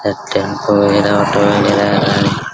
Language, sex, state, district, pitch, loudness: Hindi, male, Bihar, Araria, 100 Hz, -13 LUFS